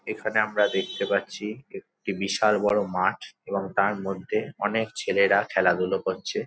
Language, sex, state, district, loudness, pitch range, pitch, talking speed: Bengali, male, West Bengal, Jhargram, -25 LUFS, 95-105 Hz, 105 Hz, 140 wpm